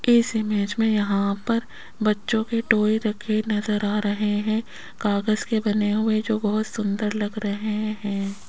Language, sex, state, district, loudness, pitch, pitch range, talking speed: Hindi, female, Rajasthan, Jaipur, -24 LUFS, 215 Hz, 205-220 Hz, 170 wpm